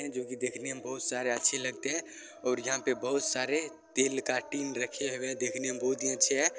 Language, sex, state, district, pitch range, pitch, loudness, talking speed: Hindi, male, Bihar, Saran, 125-135 Hz, 130 Hz, -31 LUFS, 230 wpm